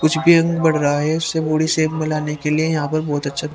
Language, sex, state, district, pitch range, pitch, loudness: Hindi, male, Haryana, Rohtak, 150-160 Hz, 155 Hz, -18 LUFS